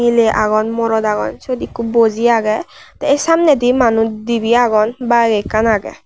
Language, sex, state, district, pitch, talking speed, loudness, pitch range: Chakma, female, Tripura, West Tripura, 230 Hz, 160 wpm, -14 LUFS, 220-240 Hz